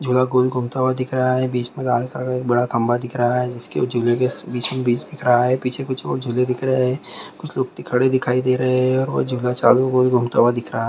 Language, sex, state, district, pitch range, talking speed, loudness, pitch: Hindi, male, Chhattisgarh, Raigarh, 125-130 Hz, 270 wpm, -20 LUFS, 125 Hz